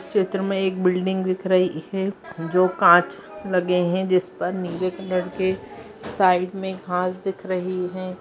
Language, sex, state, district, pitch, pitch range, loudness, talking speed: Hindi, male, Bihar, Purnia, 185 Hz, 180-190 Hz, -22 LUFS, 170 wpm